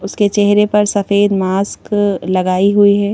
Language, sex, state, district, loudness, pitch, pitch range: Hindi, female, Madhya Pradesh, Bhopal, -13 LUFS, 205 Hz, 195-205 Hz